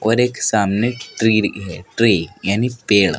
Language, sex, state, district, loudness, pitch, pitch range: Hindi, male, Madhya Pradesh, Dhar, -17 LUFS, 110 Hz, 100-115 Hz